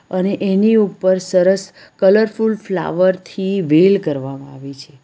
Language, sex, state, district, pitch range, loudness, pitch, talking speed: Gujarati, female, Gujarat, Valsad, 170-195 Hz, -16 LUFS, 185 Hz, 130 wpm